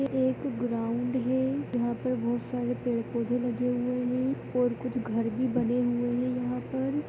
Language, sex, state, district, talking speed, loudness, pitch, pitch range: Hindi, female, Chhattisgarh, Kabirdham, 170 wpm, -29 LUFS, 245 Hz, 240-255 Hz